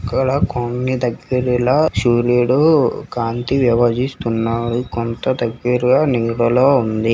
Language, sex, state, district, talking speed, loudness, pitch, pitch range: Telugu, male, Andhra Pradesh, Srikakulam, 65 wpm, -17 LUFS, 120 Hz, 115-130 Hz